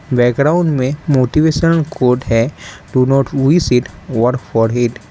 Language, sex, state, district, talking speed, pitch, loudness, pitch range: Hindi, male, Arunachal Pradesh, Lower Dibang Valley, 155 wpm, 130 Hz, -14 LUFS, 120-150 Hz